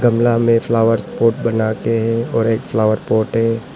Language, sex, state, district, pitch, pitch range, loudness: Hindi, male, Arunachal Pradesh, Papum Pare, 115 Hz, 110-115 Hz, -16 LUFS